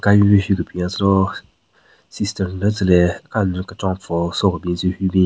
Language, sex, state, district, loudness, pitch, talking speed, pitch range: Rengma, male, Nagaland, Kohima, -19 LUFS, 95 Hz, 195 wpm, 90-100 Hz